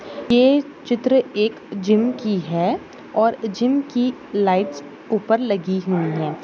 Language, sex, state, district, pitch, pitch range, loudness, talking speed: Hindi, female, Maharashtra, Nagpur, 215 Hz, 190-245 Hz, -20 LUFS, 130 wpm